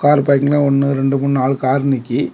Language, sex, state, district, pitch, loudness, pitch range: Tamil, male, Tamil Nadu, Kanyakumari, 140 Hz, -15 LUFS, 135-140 Hz